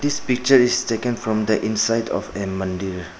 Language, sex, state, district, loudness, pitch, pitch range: English, male, Arunachal Pradesh, Papum Pare, -20 LUFS, 110 Hz, 100-125 Hz